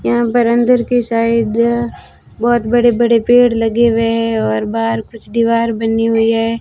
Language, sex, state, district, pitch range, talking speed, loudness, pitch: Hindi, female, Rajasthan, Bikaner, 225-235 Hz, 170 wpm, -14 LUFS, 230 Hz